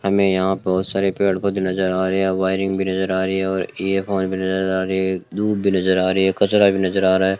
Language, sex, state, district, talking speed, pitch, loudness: Hindi, male, Rajasthan, Bikaner, 290 wpm, 95 Hz, -19 LUFS